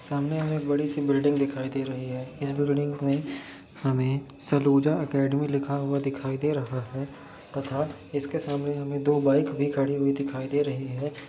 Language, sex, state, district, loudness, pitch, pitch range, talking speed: Hindi, male, Chhattisgarh, Raigarh, -27 LUFS, 140 Hz, 135-145 Hz, 160 wpm